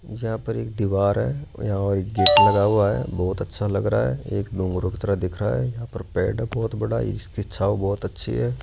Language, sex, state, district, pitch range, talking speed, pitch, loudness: Hindi, male, Rajasthan, Jaipur, 95-115 Hz, 235 wpm, 105 Hz, -23 LUFS